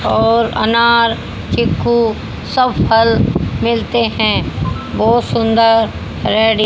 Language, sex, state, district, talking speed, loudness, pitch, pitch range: Hindi, female, Haryana, Jhajjar, 90 wpm, -14 LUFS, 230 Hz, 225-235 Hz